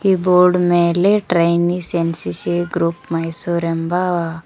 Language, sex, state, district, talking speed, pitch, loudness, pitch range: Kannada, female, Karnataka, Koppal, 105 wpm, 170 Hz, -17 LUFS, 165-180 Hz